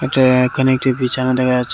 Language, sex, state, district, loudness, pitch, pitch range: Bengali, male, Tripura, West Tripura, -15 LUFS, 130 Hz, 125-130 Hz